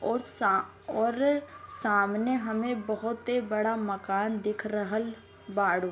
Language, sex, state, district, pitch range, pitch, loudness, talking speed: Bhojpuri, female, Uttar Pradesh, Deoria, 210-240 Hz, 220 Hz, -29 LUFS, 110 wpm